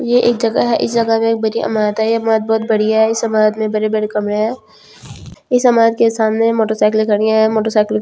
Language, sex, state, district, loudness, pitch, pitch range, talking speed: Hindi, female, Delhi, New Delhi, -15 LUFS, 220 Hz, 215-230 Hz, 230 wpm